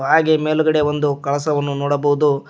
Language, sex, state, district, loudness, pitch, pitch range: Kannada, male, Karnataka, Koppal, -18 LUFS, 145 Hz, 145-155 Hz